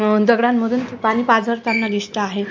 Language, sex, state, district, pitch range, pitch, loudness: Marathi, female, Maharashtra, Sindhudurg, 215-235 Hz, 225 Hz, -18 LUFS